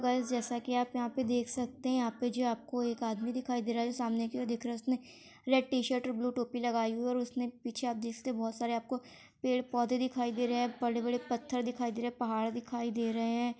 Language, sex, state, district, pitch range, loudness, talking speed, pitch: Hindi, female, Bihar, Saran, 235-250 Hz, -34 LUFS, 275 wpm, 245 Hz